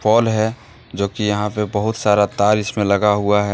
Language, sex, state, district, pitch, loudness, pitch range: Hindi, male, Jharkhand, Deoghar, 105 Hz, -18 LUFS, 105-110 Hz